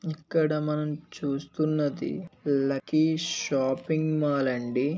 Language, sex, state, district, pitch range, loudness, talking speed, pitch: Telugu, male, Andhra Pradesh, Visakhapatnam, 140-155 Hz, -28 LUFS, 85 wpm, 150 Hz